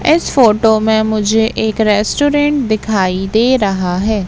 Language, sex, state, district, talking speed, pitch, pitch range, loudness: Hindi, female, Madhya Pradesh, Katni, 140 wpm, 220 Hz, 210-230 Hz, -13 LUFS